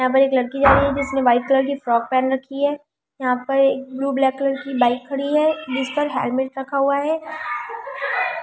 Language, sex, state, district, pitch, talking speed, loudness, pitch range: Hindi, female, Delhi, New Delhi, 270 Hz, 215 wpm, -20 LUFS, 260-280 Hz